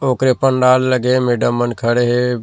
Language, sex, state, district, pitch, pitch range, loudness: Chhattisgarhi, male, Chhattisgarh, Rajnandgaon, 125 Hz, 120-130 Hz, -15 LUFS